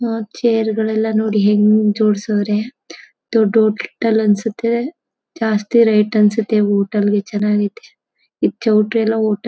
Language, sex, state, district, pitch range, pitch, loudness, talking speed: Kannada, female, Karnataka, Mysore, 210-225 Hz, 215 Hz, -16 LUFS, 120 wpm